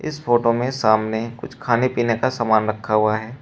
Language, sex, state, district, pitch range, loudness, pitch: Hindi, male, Uttar Pradesh, Shamli, 110-120 Hz, -20 LUFS, 115 Hz